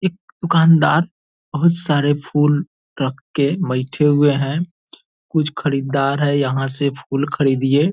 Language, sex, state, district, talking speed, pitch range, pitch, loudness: Angika, male, Bihar, Purnia, 130 wpm, 140-165 Hz, 145 Hz, -18 LUFS